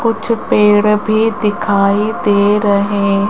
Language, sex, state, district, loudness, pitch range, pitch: Hindi, female, Rajasthan, Jaipur, -13 LUFS, 205-215 Hz, 210 Hz